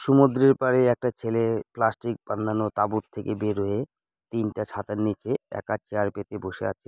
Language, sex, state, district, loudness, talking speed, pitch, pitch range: Bengali, male, West Bengal, Jalpaiguri, -26 LUFS, 155 wpm, 110 Hz, 105-120 Hz